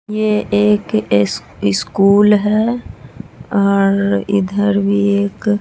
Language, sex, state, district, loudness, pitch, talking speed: Hindi, female, Bihar, Katihar, -15 LUFS, 200 Hz, 105 wpm